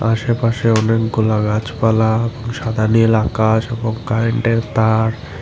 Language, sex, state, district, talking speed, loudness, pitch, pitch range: Bengali, male, Tripura, Unakoti, 110 wpm, -16 LUFS, 115 Hz, 110-115 Hz